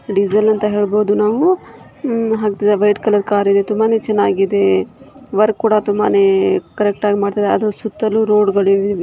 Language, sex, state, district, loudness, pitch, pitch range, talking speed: Kannada, female, Karnataka, Shimoga, -15 LUFS, 210 Hz, 205-220 Hz, 135 wpm